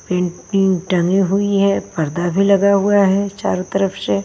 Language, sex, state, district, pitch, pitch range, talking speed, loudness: Hindi, female, Bihar, Patna, 195 Hz, 180-200 Hz, 185 wpm, -16 LUFS